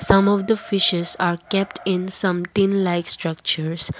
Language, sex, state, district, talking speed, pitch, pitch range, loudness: English, female, Assam, Kamrup Metropolitan, 165 wpm, 185 Hz, 170-195 Hz, -20 LUFS